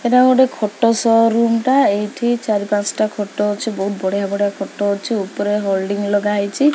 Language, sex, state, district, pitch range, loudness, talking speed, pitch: Odia, female, Odisha, Khordha, 200-230 Hz, -17 LUFS, 175 wpm, 210 Hz